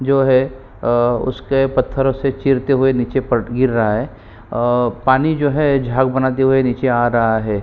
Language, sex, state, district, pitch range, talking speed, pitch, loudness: Hindi, male, Chhattisgarh, Kabirdham, 120-135 Hz, 180 wpm, 130 Hz, -16 LUFS